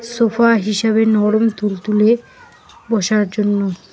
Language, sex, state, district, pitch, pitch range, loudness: Bengali, female, West Bengal, Alipurduar, 215 Hz, 210-230 Hz, -16 LUFS